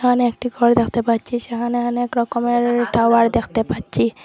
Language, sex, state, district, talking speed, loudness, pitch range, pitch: Bengali, female, Assam, Hailakandi, 155 wpm, -18 LUFS, 230-240 Hz, 235 Hz